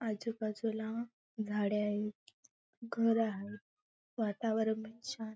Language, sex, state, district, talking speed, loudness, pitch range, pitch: Marathi, female, Maharashtra, Chandrapur, 90 wpm, -37 LUFS, 210-230 Hz, 220 Hz